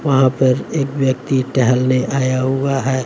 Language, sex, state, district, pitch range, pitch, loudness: Hindi, male, Bihar, West Champaran, 130-135 Hz, 130 Hz, -17 LUFS